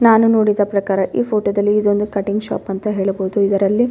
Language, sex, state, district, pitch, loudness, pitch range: Kannada, female, Karnataka, Bellary, 205 Hz, -17 LUFS, 195-210 Hz